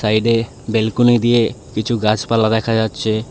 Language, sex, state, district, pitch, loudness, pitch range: Bengali, male, Tripura, West Tripura, 115 Hz, -16 LUFS, 110-115 Hz